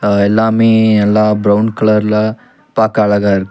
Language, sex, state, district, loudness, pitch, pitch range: Tamil, male, Tamil Nadu, Nilgiris, -12 LUFS, 105 Hz, 105-110 Hz